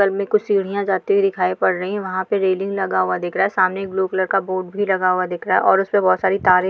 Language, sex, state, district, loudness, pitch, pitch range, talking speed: Bhojpuri, female, Bihar, Saran, -19 LUFS, 190 Hz, 185-200 Hz, 330 wpm